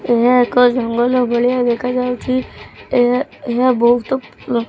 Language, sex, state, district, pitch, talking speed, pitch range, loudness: Odia, female, Odisha, Khordha, 245 Hz, 100 wpm, 240-250 Hz, -16 LUFS